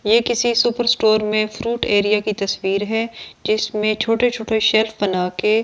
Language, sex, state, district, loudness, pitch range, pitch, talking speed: Hindi, female, Delhi, New Delhi, -18 LUFS, 210-230 Hz, 220 Hz, 160 wpm